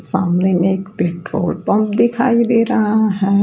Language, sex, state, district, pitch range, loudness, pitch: Hindi, female, Bihar, West Champaran, 190-230 Hz, -16 LUFS, 205 Hz